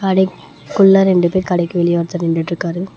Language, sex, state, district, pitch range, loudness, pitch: Tamil, female, Tamil Nadu, Namakkal, 170-190 Hz, -15 LUFS, 180 Hz